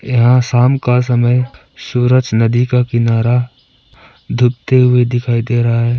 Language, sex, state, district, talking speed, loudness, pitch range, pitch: Hindi, male, Arunachal Pradesh, Papum Pare, 140 wpm, -13 LUFS, 120-125 Hz, 125 Hz